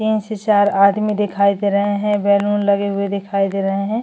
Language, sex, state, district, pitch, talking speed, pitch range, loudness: Hindi, female, Chhattisgarh, Jashpur, 200 Hz, 225 wpm, 200-205 Hz, -17 LUFS